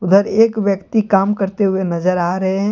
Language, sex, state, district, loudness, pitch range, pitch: Hindi, male, Jharkhand, Deoghar, -16 LUFS, 190-205 Hz, 195 Hz